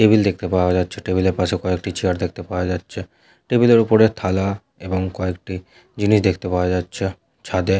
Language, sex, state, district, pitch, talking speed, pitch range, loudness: Bengali, male, West Bengal, Jhargram, 95 Hz, 160 wpm, 90-100 Hz, -20 LUFS